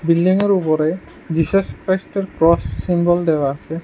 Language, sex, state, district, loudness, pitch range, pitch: Bengali, male, Tripura, West Tripura, -18 LUFS, 160-185 Hz, 170 Hz